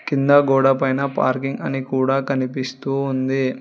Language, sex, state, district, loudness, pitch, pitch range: Telugu, male, Telangana, Hyderabad, -19 LUFS, 135 Hz, 130-135 Hz